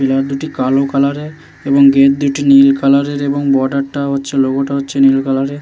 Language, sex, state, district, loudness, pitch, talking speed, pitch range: Bengali, male, West Bengal, Jalpaiguri, -13 LUFS, 140 Hz, 225 wpm, 135-140 Hz